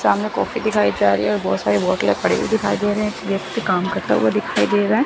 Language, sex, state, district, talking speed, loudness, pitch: Hindi, female, Chandigarh, Chandigarh, 260 wpm, -19 LUFS, 195 Hz